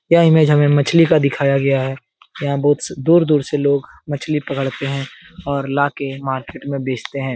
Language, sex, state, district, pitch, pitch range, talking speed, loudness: Hindi, male, Bihar, Jahanabad, 140 Hz, 135-150 Hz, 180 wpm, -17 LUFS